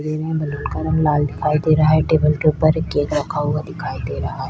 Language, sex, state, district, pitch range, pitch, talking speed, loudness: Hindi, female, Chhattisgarh, Kabirdham, 150-155 Hz, 155 Hz, 295 wpm, -19 LUFS